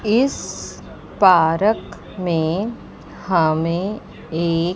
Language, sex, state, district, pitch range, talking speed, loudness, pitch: Hindi, female, Chandigarh, Chandigarh, 165-210 Hz, 65 wpm, -19 LUFS, 175 Hz